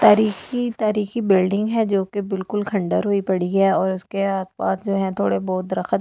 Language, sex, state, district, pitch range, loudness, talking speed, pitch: Hindi, female, Delhi, New Delhi, 190-205 Hz, -21 LUFS, 230 wpm, 195 Hz